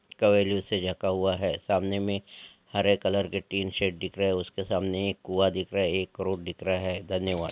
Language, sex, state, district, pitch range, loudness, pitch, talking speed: Angika, male, Bihar, Samastipur, 95-100 Hz, -28 LUFS, 95 Hz, 225 wpm